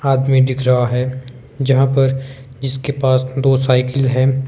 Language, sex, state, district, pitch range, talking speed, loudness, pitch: Hindi, male, Himachal Pradesh, Shimla, 130-135 Hz, 145 wpm, -16 LUFS, 130 Hz